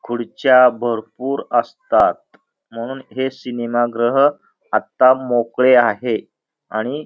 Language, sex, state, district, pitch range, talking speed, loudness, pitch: Marathi, male, Maharashtra, Pune, 120-130 Hz, 95 wpm, -17 LUFS, 120 Hz